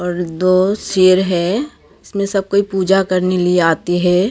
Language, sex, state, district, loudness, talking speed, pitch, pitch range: Hindi, female, Maharashtra, Gondia, -15 LUFS, 165 wpm, 185 Hz, 180-195 Hz